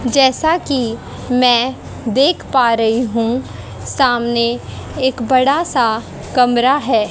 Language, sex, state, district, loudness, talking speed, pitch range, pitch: Hindi, female, Haryana, Jhajjar, -15 LUFS, 110 wpm, 235-265 Hz, 250 Hz